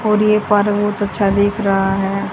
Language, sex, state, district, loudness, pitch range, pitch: Hindi, female, Haryana, Charkhi Dadri, -16 LUFS, 195-210 Hz, 205 Hz